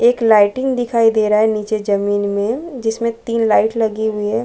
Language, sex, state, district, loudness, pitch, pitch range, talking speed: Hindi, female, Chhattisgarh, Bilaspur, -16 LUFS, 220 Hz, 210-230 Hz, 215 wpm